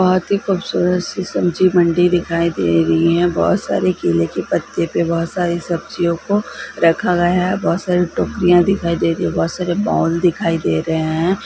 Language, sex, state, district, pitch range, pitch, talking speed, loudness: Hindi, female, Bihar, Lakhisarai, 170-180 Hz, 175 Hz, 195 wpm, -17 LUFS